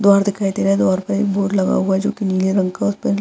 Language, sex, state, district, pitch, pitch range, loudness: Hindi, female, Bihar, Vaishali, 195 Hz, 190-200 Hz, -18 LUFS